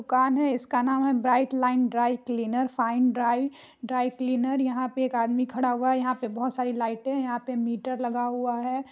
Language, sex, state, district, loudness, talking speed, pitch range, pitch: Hindi, female, Bihar, Muzaffarpur, -26 LUFS, 220 wpm, 245-260 Hz, 250 Hz